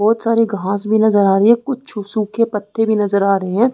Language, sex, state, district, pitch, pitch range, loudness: Hindi, female, Chhattisgarh, Rajnandgaon, 215 Hz, 205-230 Hz, -16 LUFS